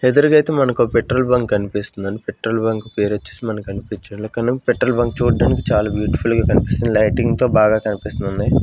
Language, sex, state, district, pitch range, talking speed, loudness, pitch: Telugu, male, Andhra Pradesh, Sri Satya Sai, 105-125 Hz, 165 wpm, -18 LUFS, 115 Hz